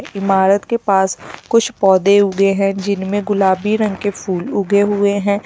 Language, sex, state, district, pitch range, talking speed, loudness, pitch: Hindi, female, Uttar Pradesh, Lalitpur, 195-205 Hz, 165 wpm, -15 LUFS, 200 Hz